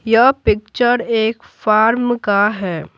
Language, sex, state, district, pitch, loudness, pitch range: Hindi, female, Bihar, Patna, 225 Hz, -16 LUFS, 215-240 Hz